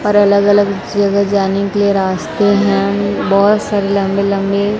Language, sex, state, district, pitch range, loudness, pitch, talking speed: Hindi, female, Chhattisgarh, Raipur, 195-205 Hz, -13 LUFS, 200 Hz, 165 wpm